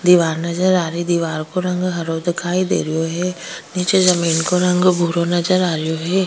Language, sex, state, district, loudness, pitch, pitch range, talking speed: Rajasthani, female, Rajasthan, Churu, -18 LUFS, 175 Hz, 165-180 Hz, 170 wpm